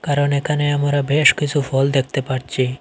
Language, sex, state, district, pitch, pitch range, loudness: Bengali, male, Assam, Hailakandi, 145 Hz, 135-145 Hz, -18 LUFS